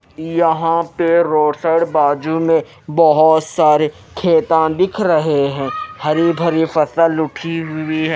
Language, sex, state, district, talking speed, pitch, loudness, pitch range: Hindi, male, Odisha, Nuapada, 125 wpm, 160 Hz, -15 LUFS, 155-165 Hz